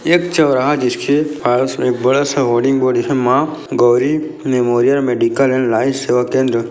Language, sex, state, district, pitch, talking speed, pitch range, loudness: Hindi, male, Bihar, Kishanganj, 130 Hz, 170 wpm, 120-140 Hz, -15 LUFS